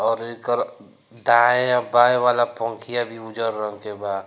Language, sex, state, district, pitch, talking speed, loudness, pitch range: Bhojpuri, male, Bihar, Gopalganj, 115 Hz, 170 wpm, -20 LUFS, 110-120 Hz